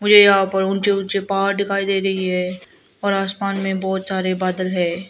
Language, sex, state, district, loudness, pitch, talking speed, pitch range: Hindi, female, Arunachal Pradesh, Lower Dibang Valley, -19 LUFS, 195 Hz, 200 wpm, 185-200 Hz